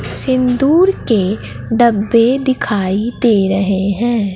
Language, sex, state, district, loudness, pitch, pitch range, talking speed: Hindi, female, Bihar, Katihar, -14 LUFS, 230 Hz, 200-255 Hz, 95 wpm